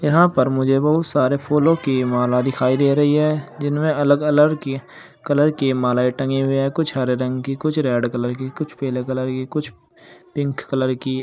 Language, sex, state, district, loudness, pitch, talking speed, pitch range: Hindi, male, Uttar Pradesh, Saharanpur, -19 LUFS, 135 Hz, 205 wpm, 130-150 Hz